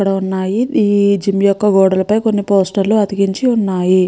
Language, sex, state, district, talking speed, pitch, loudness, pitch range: Telugu, female, Andhra Pradesh, Srikakulam, 145 wpm, 200 Hz, -14 LUFS, 190-210 Hz